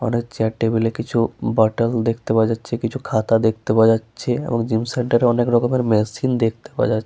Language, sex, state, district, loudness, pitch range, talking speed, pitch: Bengali, male, West Bengal, Paschim Medinipur, -19 LUFS, 110-120 Hz, 205 wpm, 115 Hz